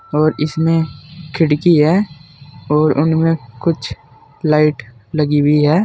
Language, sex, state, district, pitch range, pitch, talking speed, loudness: Hindi, male, Uttar Pradesh, Saharanpur, 145-160 Hz, 150 Hz, 115 wpm, -15 LUFS